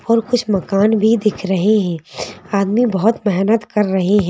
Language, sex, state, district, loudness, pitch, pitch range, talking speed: Hindi, female, Madhya Pradesh, Bhopal, -16 LUFS, 205 Hz, 195-220 Hz, 180 wpm